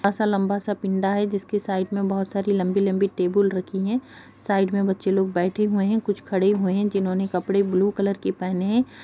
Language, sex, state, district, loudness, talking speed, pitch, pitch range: Hindi, female, Bihar, Jahanabad, -23 LUFS, 200 wpm, 195 Hz, 190-200 Hz